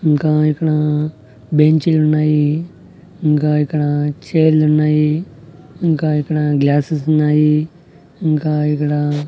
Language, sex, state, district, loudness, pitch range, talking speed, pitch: Telugu, male, Andhra Pradesh, Annamaya, -16 LUFS, 150-155 Hz, 70 wpm, 150 Hz